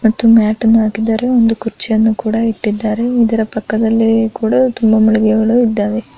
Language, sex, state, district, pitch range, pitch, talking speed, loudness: Kannada, female, Karnataka, Chamarajanagar, 220-225 Hz, 225 Hz, 135 wpm, -13 LUFS